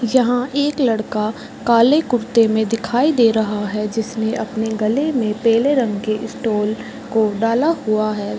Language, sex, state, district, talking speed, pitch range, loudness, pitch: Hindi, female, Bihar, Sitamarhi, 155 wpm, 215-245 Hz, -18 LUFS, 225 Hz